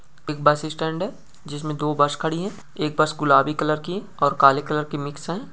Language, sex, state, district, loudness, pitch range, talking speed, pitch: Hindi, male, Chhattisgarh, Bastar, -22 LUFS, 145-160 Hz, 215 wpm, 150 Hz